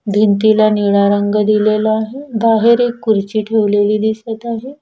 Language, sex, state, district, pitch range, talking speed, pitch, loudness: Marathi, female, Maharashtra, Washim, 210-225 Hz, 135 wpm, 215 Hz, -14 LUFS